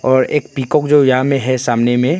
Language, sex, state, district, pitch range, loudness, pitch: Hindi, male, Arunachal Pradesh, Longding, 125-145 Hz, -14 LUFS, 130 Hz